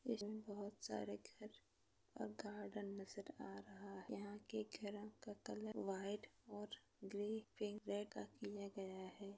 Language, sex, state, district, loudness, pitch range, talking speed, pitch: Hindi, female, Maharashtra, Pune, -51 LUFS, 195-210 Hz, 145 wpm, 205 Hz